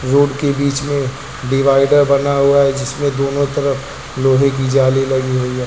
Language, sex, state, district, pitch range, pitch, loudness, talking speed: Hindi, male, Uttar Pradesh, Lucknow, 135-140 Hz, 140 Hz, -15 LUFS, 180 wpm